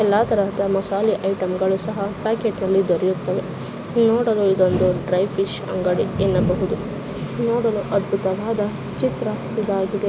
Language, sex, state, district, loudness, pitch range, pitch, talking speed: Kannada, female, Karnataka, Shimoga, -21 LUFS, 190-215 Hz, 200 Hz, 115 wpm